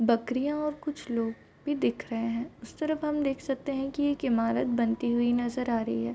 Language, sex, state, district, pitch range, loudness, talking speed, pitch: Hindi, female, Bihar, Bhagalpur, 230-290 Hz, -30 LUFS, 225 wpm, 250 Hz